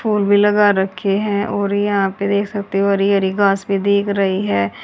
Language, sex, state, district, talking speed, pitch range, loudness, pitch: Hindi, female, Haryana, Charkhi Dadri, 225 wpm, 195-205 Hz, -17 LUFS, 200 Hz